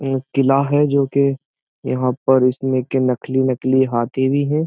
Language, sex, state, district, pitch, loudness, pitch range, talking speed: Hindi, male, Uttar Pradesh, Jyotiba Phule Nagar, 130 Hz, -18 LUFS, 130-140 Hz, 195 wpm